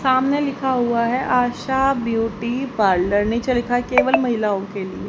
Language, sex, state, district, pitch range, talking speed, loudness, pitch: Hindi, female, Haryana, Jhajjar, 220-260 Hz, 165 wpm, -19 LUFS, 245 Hz